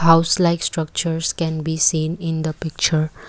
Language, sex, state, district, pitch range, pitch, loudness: English, female, Assam, Kamrup Metropolitan, 160-165 Hz, 160 Hz, -20 LUFS